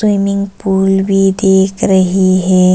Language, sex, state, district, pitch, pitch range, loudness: Hindi, female, Arunachal Pradesh, Papum Pare, 195 Hz, 190-195 Hz, -12 LUFS